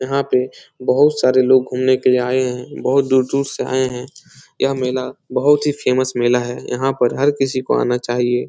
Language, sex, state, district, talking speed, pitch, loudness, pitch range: Hindi, male, Bihar, Supaul, 210 wpm, 130 Hz, -17 LUFS, 125-135 Hz